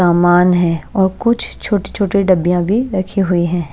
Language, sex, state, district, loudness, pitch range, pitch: Hindi, female, Punjab, Pathankot, -15 LUFS, 175-200 Hz, 185 Hz